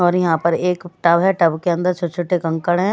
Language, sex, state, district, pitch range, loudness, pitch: Hindi, male, Bihar, West Champaran, 170-180 Hz, -18 LUFS, 175 Hz